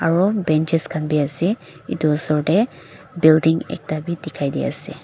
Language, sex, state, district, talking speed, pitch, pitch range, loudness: Nagamese, female, Nagaland, Dimapur, 165 wpm, 160 Hz, 155-175 Hz, -20 LUFS